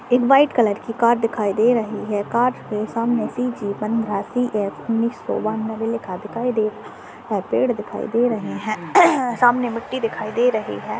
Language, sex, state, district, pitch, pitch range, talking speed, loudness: Hindi, female, Chhattisgarh, Sarguja, 230 Hz, 215-245 Hz, 185 wpm, -20 LUFS